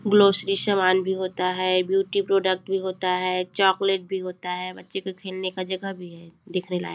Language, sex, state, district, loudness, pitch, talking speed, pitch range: Hindi, female, Chhattisgarh, Bilaspur, -24 LUFS, 185 Hz, 200 wpm, 185-195 Hz